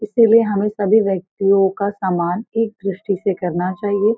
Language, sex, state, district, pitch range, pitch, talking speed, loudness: Hindi, female, Uttar Pradesh, Varanasi, 190-215 Hz, 200 Hz, 160 wpm, -18 LUFS